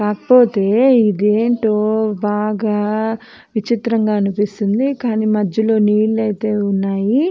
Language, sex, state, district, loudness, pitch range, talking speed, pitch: Telugu, female, Andhra Pradesh, Anantapur, -16 LUFS, 210-225 Hz, 80 wpm, 215 Hz